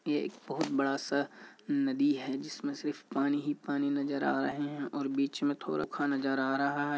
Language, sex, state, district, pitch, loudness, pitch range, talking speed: Hindi, male, Bihar, Kishanganj, 140 Hz, -33 LUFS, 135-145 Hz, 205 wpm